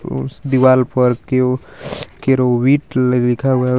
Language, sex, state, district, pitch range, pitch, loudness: Hindi, female, Jharkhand, Garhwa, 125-130 Hz, 130 Hz, -15 LUFS